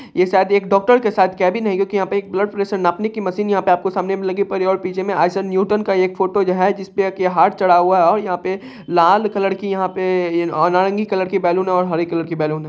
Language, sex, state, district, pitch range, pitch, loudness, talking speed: Hindi, male, Bihar, Saharsa, 185-200 Hz, 190 Hz, -17 LUFS, 280 wpm